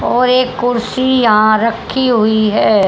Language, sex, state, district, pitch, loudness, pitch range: Hindi, female, Haryana, Charkhi Dadri, 235 Hz, -12 LUFS, 215-250 Hz